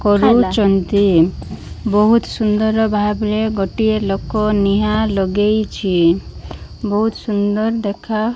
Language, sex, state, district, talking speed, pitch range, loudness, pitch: Odia, female, Odisha, Malkangiri, 85 wpm, 200-220 Hz, -16 LUFS, 210 Hz